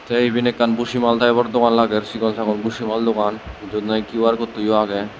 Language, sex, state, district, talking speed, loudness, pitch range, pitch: Chakma, male, Tripura, West Tripura, 195 wpm, -19 LUFS, 110-120 Hz, 115 Hz